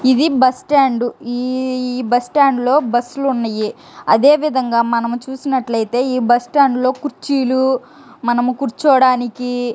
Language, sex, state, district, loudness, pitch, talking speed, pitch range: Telugu, male, Andhra Pradesh, Guntur, -16 LUFS, 255 Hz, 110 wpm, 245-270 Hz